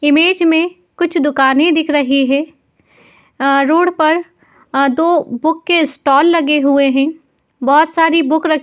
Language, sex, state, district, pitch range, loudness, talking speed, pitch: Hindi, female, Uttar Pradesh, Jalaun, 280-330 Hz, -13 LUFS, 145 wpm, 310 Hz